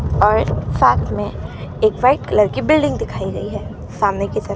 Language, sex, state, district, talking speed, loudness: Hindi, female, Gujarat, Gandhinagar, 185 wpm, -17 LUFS